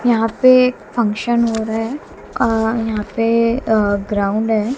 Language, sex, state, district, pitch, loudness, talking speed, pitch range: Hindi, female, Haryana, Jhajjar, 225 Hz, -17 LUFS, 150 wpm, 220-235 Hz